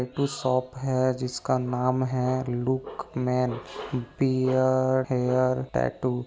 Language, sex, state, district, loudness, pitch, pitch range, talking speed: Hindi, male, Maharashtra, Sindhudurg, -26 LUFS, 130 Hz, 125-130 Hz, 105 wpm